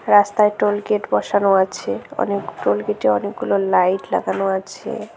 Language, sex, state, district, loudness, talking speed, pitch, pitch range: Bengali, female, West Bengal, Cooch Behar, -19 LUFS, 130 wpm, 195 Hz, 190-205 Hz